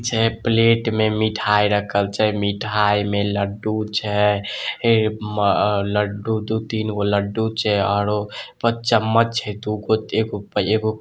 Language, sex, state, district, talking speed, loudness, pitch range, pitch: Maithili, male, Bihar, Samastipur, 110 wpm, -20 LUFS, 105-110 Hz, 105 Hz